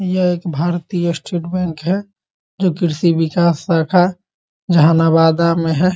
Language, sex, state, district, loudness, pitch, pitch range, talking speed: Hindi, male, Bihar, Muzaffarpur, -16 LUFS, 170 Hz, 165-180 Hz, 120 wpm